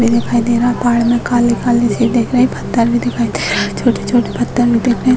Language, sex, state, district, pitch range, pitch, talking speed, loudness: Hindi, female, Bihar, Purnia, 235-245 Hz, 240 Hz, 280 wpm, -14 LUFS